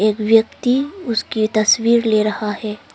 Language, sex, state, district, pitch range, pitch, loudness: Hindi, female, Arunachal Pradesh, Longding, 215-235 Hz, 220 Hz, -17 LUFS